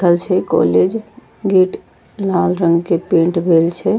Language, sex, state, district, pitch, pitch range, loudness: Angika, female, Bihar, Bhagalpur, 175 Hz, 170-190 Hz, -15 LUFS